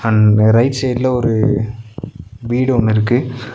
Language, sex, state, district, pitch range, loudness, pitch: Tamil, male, Tamil Nadu, Nilgiris, 110-130 Hz, -15 LUFS, 120 Hz